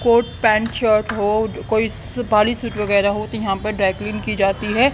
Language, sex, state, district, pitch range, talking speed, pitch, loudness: Hindi, female, Haryana, Charkhi Dadri, 205-225 Hz, 205 wpm, 215 Hz, -19 LUFS